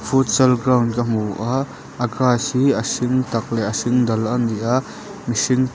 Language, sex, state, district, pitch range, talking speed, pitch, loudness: Mizo, male, Mizoram, Aizawl, 115-130 Hz, 190 wpm, 120 Hz, -19 LUFS